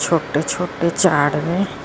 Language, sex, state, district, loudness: Punjabi, female, Karnataka, Bangalore, -18 LUFS